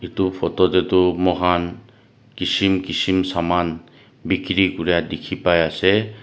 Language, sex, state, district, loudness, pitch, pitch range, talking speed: Nagamese, male, Nagaland, Dimapur, -19 LUFS, 95 Hz, 90-100 Hz, 105 wpm